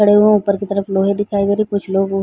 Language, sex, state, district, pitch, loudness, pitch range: Hindi, female, Uttar Pradesh, Varanasi, 200 Hz, -16 LUFS, 195-205 Hz